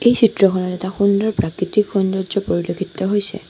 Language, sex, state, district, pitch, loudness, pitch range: Assamese, female, Assam, Sonitpur, 195 Hz, -18 LUFS, 185-205 Hz